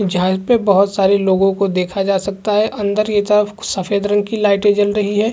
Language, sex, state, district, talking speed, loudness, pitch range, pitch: Hindi, male, Chhattisgarh, Korba, 225 wpm, -16 LUFS, 195-210 Hz, 205 Hz